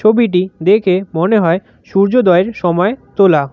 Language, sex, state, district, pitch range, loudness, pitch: Bengali, male, West Bengal, Cooch Behar, 175-215 Hz, -13 LUFS, 190 Hz